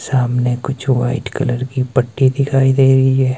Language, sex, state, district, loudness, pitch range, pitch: Hindi, male, Himachal Pradesh, Shimla, -15 LUFS, 125-135 Hz, 130 Hz